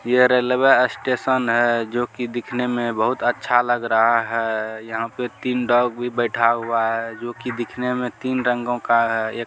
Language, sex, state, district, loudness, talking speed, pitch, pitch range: Maithili, male, Bihar, Supaul, -20 LUFS, 195 wpm, 120 Hz, 115-125 Hz